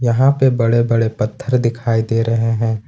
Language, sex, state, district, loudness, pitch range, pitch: Hindi, male, Jharkhand, Ranchi, -16 LUFS, 115-120 Hz, 115 Hz